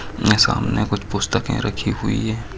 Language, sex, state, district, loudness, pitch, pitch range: Hindi, male, Bihar, Lakhisarai, -20 LUFS, 105 Hz, 100-115 Hz